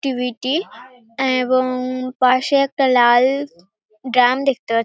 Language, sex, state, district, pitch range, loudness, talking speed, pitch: Bengali, female, West Bengal, North 24 Parganas, 245-265 Hz, -17 LUFS, 110 wpm, 255 Hz